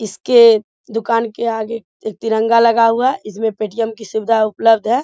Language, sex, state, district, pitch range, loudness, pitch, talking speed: Hindi, female, Bihar, Bhagalpur, 220-230 Hz, -15 LUFS, 225 Hz, 165 wpm